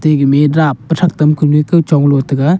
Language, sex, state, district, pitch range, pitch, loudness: Wancho, male, Arunachal Pradesh, Longding, 145-160 Hz, 150 Hz, -11 LUFS